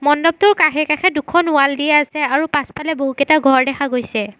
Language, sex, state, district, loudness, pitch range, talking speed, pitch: Assamese, female, Assam, Sonitpur, -15 LUFS, 275-310 Hz, 165 wpm, 295 Hz